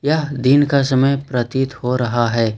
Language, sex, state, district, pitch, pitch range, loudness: Hindi, male, Jharkhand, Ranchi, 130 Hz, 120-140 Hz, -17 LUFS